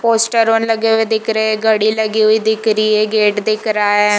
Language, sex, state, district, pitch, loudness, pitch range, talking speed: Hindi, female, Chhattisgarh, Bilaspur, 220 Hz, -14 LUFS, 215-225 Hz, 230 wpm